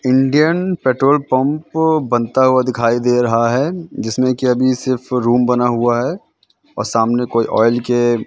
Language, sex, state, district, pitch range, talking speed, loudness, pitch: Hindi, male, Madhya Pradesh, Katni, 120-135 Hz, 160 wpm, -15 LUFS, 125 Hz